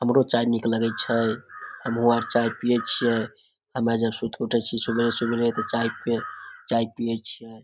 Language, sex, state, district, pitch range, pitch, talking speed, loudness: Maithili, male, Bihar, Samastipur, 115-120 Hz, 115 Hz, 180 wpm, -25 LUFS